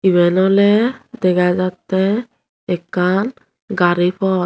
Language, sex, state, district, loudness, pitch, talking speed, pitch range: Chakma, female, Tripura, Unakoti, -16 LUFS, 190 Hz, 95 wpm, 180-205 Hz